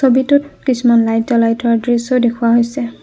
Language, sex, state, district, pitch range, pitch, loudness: Assamese, female, Assam, Kamrup Metropolitan, 230-255 Hz, 235 Hz, -14 LUFS